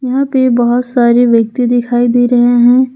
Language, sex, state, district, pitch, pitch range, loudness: Hindi, female, Jharkhand, Ranchi, 245 Hz, 240-250 Hz, -10 LUFS